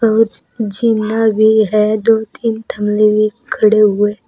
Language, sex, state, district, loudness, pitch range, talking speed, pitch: Hindi, female, Uttar Pradesh, Saharanpur, -14 LUFS, 215-225 Hz, 125 wpm, 220 Hz